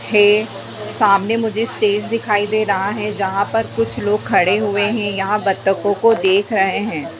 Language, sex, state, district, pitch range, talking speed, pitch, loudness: Hindi, female, Bihar, Bhagalpur, 200-215 Hz, 175 wpm, 210 Hz, -17 LUFS